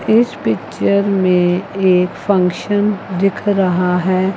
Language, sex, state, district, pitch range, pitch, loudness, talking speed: Hindi, female, Chandigarh, Chandigarh, 180-200 Hz, 190 Hz, -15 LUFS, 110 wpm